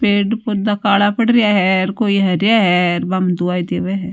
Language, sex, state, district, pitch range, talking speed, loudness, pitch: Marwari, female, Rajasthan, Nagaur, 185-210 Hz, 190 wpm, -15 LUFS, 200 Hz